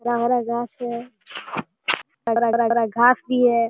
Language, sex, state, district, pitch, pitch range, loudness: Hindi, male, Bihar, Jamui, 235 Hz, 235-245 Hz, -21 LUFS